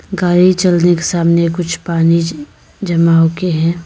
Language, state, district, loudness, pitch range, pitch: Hindi, Arunachal Pradesh, Lower Dibang Valley, -13 LUFS, 165-175 Hz, 170 Hz